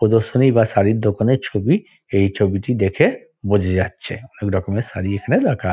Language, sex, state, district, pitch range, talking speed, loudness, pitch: Bengali, male, West Bengal, Dakshin Dinajpur, 100-125 Hz, 145 wpm, -18 LUFS, 110 Hz